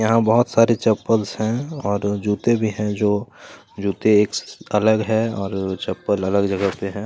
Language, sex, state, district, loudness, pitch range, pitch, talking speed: Hindi, male, Chhattisgarh, Kabirdham, -20 LUFS, 100-110 Hz, 105 Hz, 160 wpm